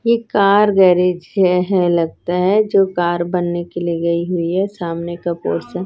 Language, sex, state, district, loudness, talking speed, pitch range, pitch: Hindi, female, Chhattisgarh, Raipur, -16 LUFS, 195 wpm, 170-195 Hz, 180 Hz